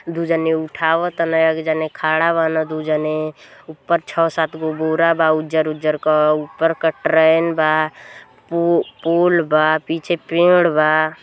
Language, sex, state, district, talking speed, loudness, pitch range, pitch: Bhojpuri, female, Uttar Pradesh, Gorakhpur, 145 wpm, -17 LUFS, 155-165 Hz, 160 Hz